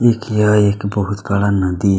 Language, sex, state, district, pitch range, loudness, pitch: Hindi, male, Chhattisgarh, Kabirdham, 100-105 Hz, -16 LUFS, 100 Hz